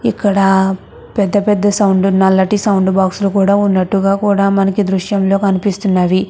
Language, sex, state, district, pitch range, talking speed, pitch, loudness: Telugu, female, Andhra Pradesh, Krishna, 190-205 Hz, 105 wpm, 195 Hz, -13 LUFS